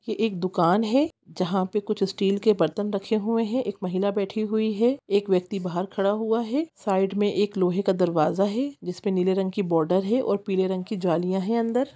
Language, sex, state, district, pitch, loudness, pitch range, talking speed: Hindi, female, Chhattisgarh, Sukma, 200 Hz, -25 LUFS, 185-220 Hz, 220 wpm